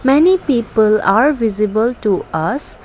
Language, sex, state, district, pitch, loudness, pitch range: English, female, Assam, Kamrup Metropolitan, 230 Hz, -14 LUFS, 215-275 Hz